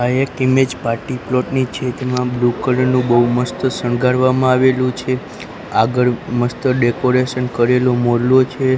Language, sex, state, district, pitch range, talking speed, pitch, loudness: Gujarati, male, Gujarat, Gandhinagar, 120-130 Hz, 150 wpm, 125 Hz, -16 LUFS